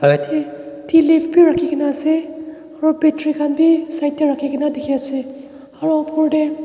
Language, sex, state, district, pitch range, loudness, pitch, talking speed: Nagamese, male, Nagaland, Dimapur, 280-315 Hz, -17 LUFS, 305 Hz, 180 wpm